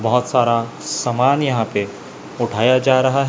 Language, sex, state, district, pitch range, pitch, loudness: Hindi, male, Chhattisgarh, Raipur, 115-130 Hz, 120 Hz, -18 LUFS